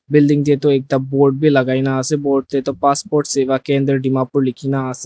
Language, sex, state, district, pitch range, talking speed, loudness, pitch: Nagamese, male, Nagaland, Dimapur, 135-145 Hz, 200 wpm, -16 LUFS, 140 Hz